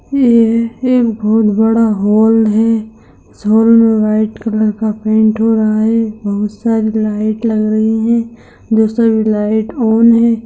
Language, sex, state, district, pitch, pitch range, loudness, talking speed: Hindi, female, Bihar, Lakhisarai, 220 Hz, 215-230 Hz, -12 LUFS, 155 wpm